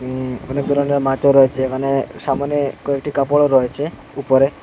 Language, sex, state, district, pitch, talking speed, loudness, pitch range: Bengali, male, Assam, Hailakandi, 135 Hz, 140 wpm, -17 LUFS, 130-140 Hz